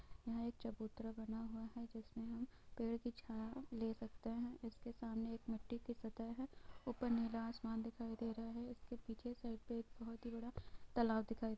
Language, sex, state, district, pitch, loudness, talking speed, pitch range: Hindi, female, Bihar, Gopalganj, 230 Hz, -47 LUFS, 200 wpm, 225-235 Hz